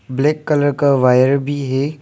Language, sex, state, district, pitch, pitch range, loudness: Hindi, male, Arunachal Pradesh, Lower Dibang Valley, 140 Hz, 130-145 Hz, -16 LUFS